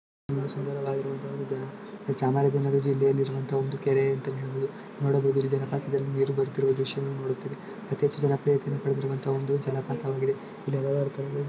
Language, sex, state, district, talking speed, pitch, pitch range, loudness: Kannada, male, Karnataka, Chamarajanagar, 120 wpm, 135 Hz, 135-140 Hz, -28 LUFS